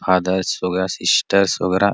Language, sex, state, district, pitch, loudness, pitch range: Hindi, male, Chhattisgarh, Bastar, 95 Hz, -18 LUFS, 90-100 Hz